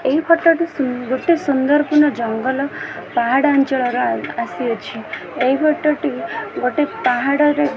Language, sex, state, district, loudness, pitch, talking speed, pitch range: Odia, female, Odisha, Khordha, -18 LUFS, 275 Hz, 130 wpm, 250-300 Hz